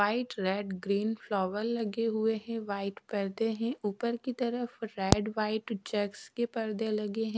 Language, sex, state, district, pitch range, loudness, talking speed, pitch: Hindi, female, Odisha, Sambalpur, 205-230 Hz, -32 LUFS, 160 wpm, 220 Hz